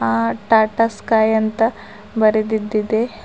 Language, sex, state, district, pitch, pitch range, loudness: Kannada, female, Karnataka, Bidar, 220 Hz, 215-225 Hz, -17 LUFS